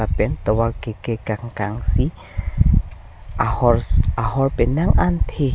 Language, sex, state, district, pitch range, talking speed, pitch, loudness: Karbi, male, Assam, Karbi Anglong, 90-120 Hz, 110 wpm, 110 Hz, -20 LUFS